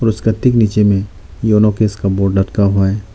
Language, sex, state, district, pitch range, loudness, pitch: Hindi, male, Arunachal Pradesh, Lower Dibang Valley, 95-110 Hz, -14 LUFS, 105 Hz